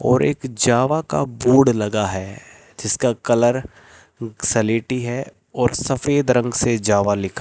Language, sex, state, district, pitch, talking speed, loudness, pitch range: Hindi, male, Rajasthan, Bikaner, 120 Hz, 145 wpm, -19 LUFS, 105-130 Hz